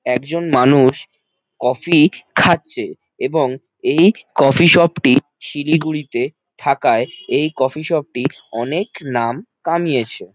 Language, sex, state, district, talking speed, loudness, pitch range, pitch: Bengali, male, West Bengal, Jalpaiguri, 110 wpm, -16 LUFS, 130-170 Hz, 155 Hz